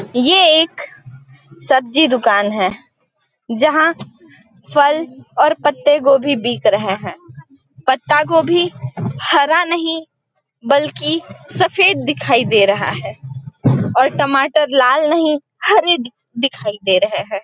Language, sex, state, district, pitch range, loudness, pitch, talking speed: Hindi, female, Chhattisgarh, Balrampur, 205-315 Hz, -15 LUFS, 275 Hz, 115 wpm